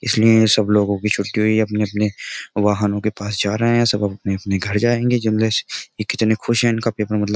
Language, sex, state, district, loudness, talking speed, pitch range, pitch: Hindi, male, Uttar Pradesh, Jyotiba Phule Nagar, -18 LUFS, 220 wpm, 105-110 Hz, 105 Hz